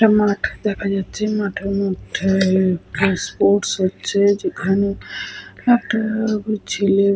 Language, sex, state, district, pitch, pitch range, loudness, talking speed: Bengali, female, Jharkhand, Sahebganj, 200 Hz, 190-210 Hz, -19 LUFS, 90 wpm